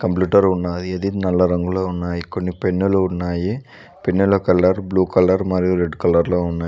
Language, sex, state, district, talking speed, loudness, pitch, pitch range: Telugu, male, Telangana, Mahabubabad, 160 wpm, -19 LUFS, 90 Hz, 90-95 Hz